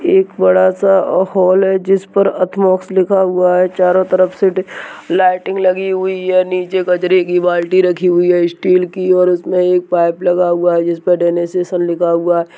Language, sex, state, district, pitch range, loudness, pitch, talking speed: Hindi, male, Uttar Pradesh, Jyotiba Phule Nagar, 175-185 Hz, -13 LUFS, 185 Hz, 190 wpm